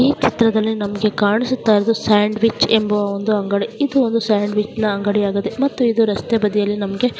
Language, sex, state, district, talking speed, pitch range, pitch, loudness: Kannada, female, Karnataka, Dharwad, 160 wpm, 205-230 Hz, 215 Hz, -17 LUFS